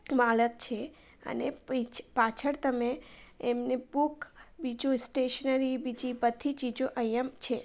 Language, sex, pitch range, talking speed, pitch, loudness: Gujarati, female, 240-265 Hz, 110 wpm, 255 Hz, -31 LUFS